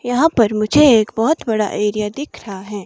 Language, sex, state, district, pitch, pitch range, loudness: Hindi, female, Himachal Pradesh, Shimla, 220 Hz, 210-270 Hz, -16 LUFS